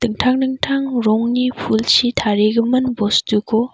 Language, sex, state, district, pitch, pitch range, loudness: Garo, female, Meghalaya, West Garo Hills, 240 Hz, 220-255 Hz, -16 LUFS